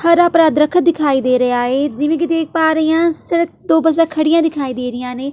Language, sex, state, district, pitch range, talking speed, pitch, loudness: Punjabi, female, Delhi, New Delhi, 275-330 Hz, 235 wpm, 315 Hz, -15 LUFS